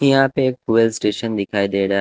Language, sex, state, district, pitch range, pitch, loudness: Hindi, male, Delhi, New Delhi, 100-130 Hz, 115 Hz, -18 LUFS